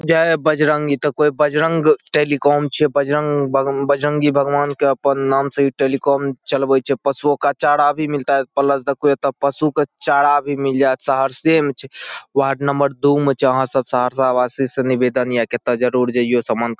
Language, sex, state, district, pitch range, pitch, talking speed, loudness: Maithili, male, Bihar, Saharsa, 135-145 Hz, 140 Hz, 205 wpm, -17 LUFS